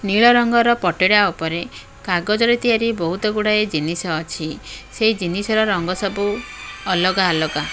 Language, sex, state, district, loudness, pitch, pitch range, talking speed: Odia, female, Odisha, Khordha, -18 LUFS, 200 Hz, 175-220 Hz, 125 wpm